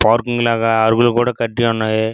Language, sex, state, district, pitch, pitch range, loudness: Telugu, male, Andhra Pradesh, Srikakulam, 115 Hz, 110-120 Hz, -16 LUFS